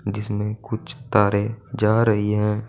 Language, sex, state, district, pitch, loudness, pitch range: Hindi, male, Uttar Pradesh, Saharanpur, 105 Hz, -22 LUFS, 105-110 Hz